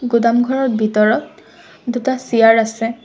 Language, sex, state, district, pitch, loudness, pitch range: Assamese, female, Assam, Sonitpur, 235 Hz, -15 LUFS, 225-245 Hz